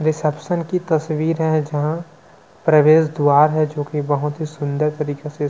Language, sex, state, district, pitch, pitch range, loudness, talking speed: Hindi, male, Chhattisgarh, Sukma, 155 Hz, 150-160 Hz, -19 LUFS, 165 wpm